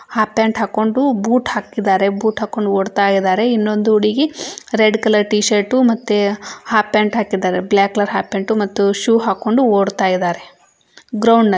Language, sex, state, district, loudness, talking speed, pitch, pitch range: Kannada, female, Karnataka, Belgaum, -16 LUFS, 150 wpm, 215 Hz, 200-230 Hz